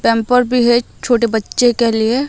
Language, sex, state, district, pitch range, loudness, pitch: Hindi, female, Odisha, Malkangiri, 230-250 Hz, -14 LUFS, 240 Hz